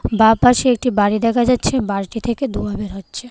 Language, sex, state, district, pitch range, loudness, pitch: Bengali, female, Tripura, West Tripura, 205-245 Hz, -17 LUFS, 230 Hz